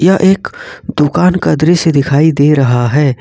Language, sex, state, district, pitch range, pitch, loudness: Hindi, male, Jharkhand, Ranchi, 140-180 Hz, 155 Hz, -11 LUFS